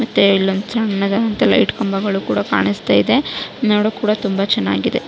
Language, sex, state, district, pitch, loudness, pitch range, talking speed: Kannada, female, Karnataka, Raichur, 200 Hz, -17 LUFS, 195-220 Hz, 130 wpm